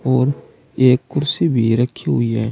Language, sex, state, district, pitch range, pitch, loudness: Hindi, male, Uttar Pradesh, Saharanpur, 120-140 Hz, 130 Hz, -17 LUFS